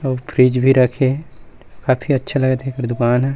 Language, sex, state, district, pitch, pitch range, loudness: Chhattisgarhi, male, Chhattisgarh, Rajnandgaon, 130 Hz, 125-135 Hz, -17 LUFS